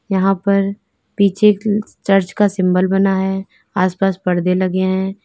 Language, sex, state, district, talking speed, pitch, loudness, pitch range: Hindi, female, Uttar Pradesh, Lalitpur, 150 wpm, 195 Hz, -16 LUFS, 185-200 Hz